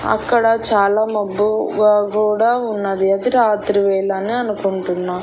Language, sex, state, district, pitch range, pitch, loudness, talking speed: Telugu, female, Andhra Pradesh, Annamaya, 195-220 Hz, 210 Hz, -17 LUFS, 115 wpm